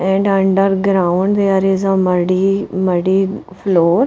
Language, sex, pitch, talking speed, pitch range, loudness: English, female, 190 Hz, 105 wpm, 185-195 Hz, -15 LUFS